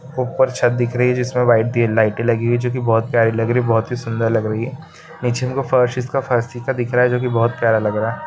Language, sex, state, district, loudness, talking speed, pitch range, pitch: Hindi, male, Goa, North and South Goa, -18 LUFS, 255 wpm, 115-125 Hz, 120 Hz